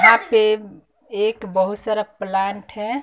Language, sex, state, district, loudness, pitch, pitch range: Hindi, female, Bihar, West Champaran, -20 LUFS, 210 Hz, 200-225 Hz